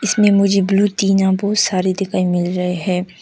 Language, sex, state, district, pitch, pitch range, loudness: Hindi, female, Arunachal Pradesh, Papum Pare, 190 Hz, 180-200 Hz, -16 LUFS